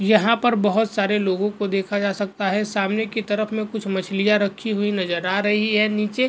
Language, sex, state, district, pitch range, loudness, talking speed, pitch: Hindi, male, Goa, North and South Goa, 200-215 Hz, -21 LUFS, 230 wpm, 205 Hz